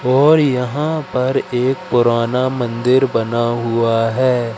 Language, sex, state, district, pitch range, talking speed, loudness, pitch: Hindi, male, Madhya Pradesh, Katni, 120-130 Hz, 120 wpm, -16 LUFS, 125 Hz